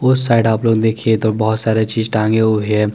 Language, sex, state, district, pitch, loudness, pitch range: Hindi, male, Chandigarh, Chandigarh, 110 Hz, -15 LUFS, 110-115 Hz